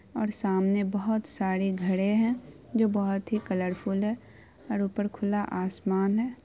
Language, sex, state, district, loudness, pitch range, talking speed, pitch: Hindi, female, Bihar, Araria, -29 LUFS, 195-220 Hz, 150 wpm, 205 Hz